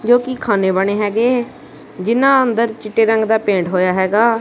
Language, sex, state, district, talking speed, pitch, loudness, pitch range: Punjabi, male, Punjab, Kapurthala, 190 wpm, 220 Hz, -15 LUFS, 190-235 Hz